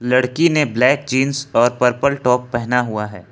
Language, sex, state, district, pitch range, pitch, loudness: Hindi, male, Jharkhand, Ranchi, 120-140 Hz, 125 Hz, -17 LUFS